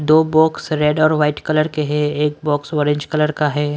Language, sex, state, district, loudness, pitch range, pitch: Hindi, female, Maharashtra, Washim, -17 LUFS, 150-155 Hz, 150 Hz